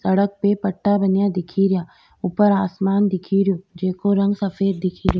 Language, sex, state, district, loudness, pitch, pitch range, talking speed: Rajasthani, female, Rajasthan, Nagaur, -20 LUFS, 195 Hz, 185-200 Hz, 140 wpm